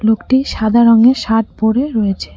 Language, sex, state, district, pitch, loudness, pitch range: Bengali, female, West Bengal, Cooch Behar, 225 Hz, -13 LUFS, 220-245 Hz